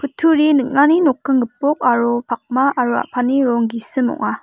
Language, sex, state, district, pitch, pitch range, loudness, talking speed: Garo, female, Meghalaya, West Garo Hills, 255 Hz, 240-285 Hz, -16 LUFS, 150 wpm